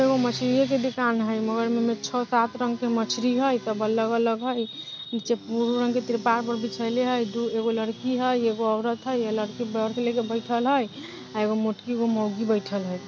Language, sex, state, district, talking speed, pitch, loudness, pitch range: Bajjika, female, Bihar, Vaishali, 205 wpm, 235 Hz, -25 LUFS, 225-245 Hz